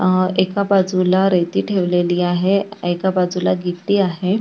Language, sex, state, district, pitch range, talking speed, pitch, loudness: Marathi, female, Maharashtra, Chandrapur, 180-195 Hz, 135 wpm, 185 Hz, -17 LUFS